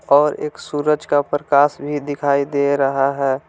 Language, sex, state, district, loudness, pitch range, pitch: Hindi, male, Jharkhand, Palamu, -18 LUFS, 140-145 Hz, 145 Hz